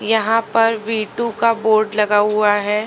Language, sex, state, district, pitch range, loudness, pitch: Hindi, female, Delhi, New Delhi, 210-225 Hz, -16 LUFS, 220 Hz